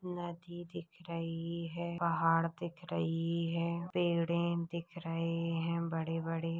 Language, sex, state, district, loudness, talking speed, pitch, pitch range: Hindi, male, Chhattisgarh, Raigarh, -36 LUFS, 120 wpm, 170 Hz, 165-170 Hz